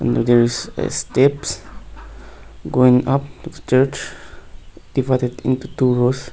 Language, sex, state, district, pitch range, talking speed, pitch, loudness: English, male, Nagaland, Kohima, 125-135 Hz, 115 wpm, 130 Hz, -18 LUFS